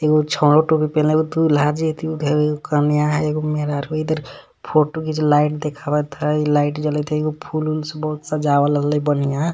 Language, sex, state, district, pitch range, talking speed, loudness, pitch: Magahi, male, Jharkhand, Palamu, 150-155 Hz, 180 wpm, -19 LUFS, 150 Hz